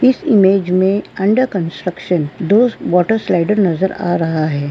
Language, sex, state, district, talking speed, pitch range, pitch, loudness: Hindi, female, Uttar Pradesh, Varanasi, 155 wpm, 175-210 Hz, 190 Hz, -15 LUFS